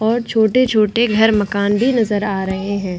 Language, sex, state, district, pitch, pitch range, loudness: Hindi, female, Bihar, Vaishali, 215 Hz, 200-230 Hz, -16 LUFS